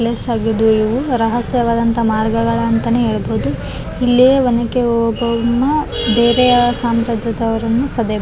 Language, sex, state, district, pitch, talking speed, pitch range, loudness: Kannada, female, Karnataka, Raichur, 235 Hz, 50 wpm, 230-245 Hz, -15 LUFS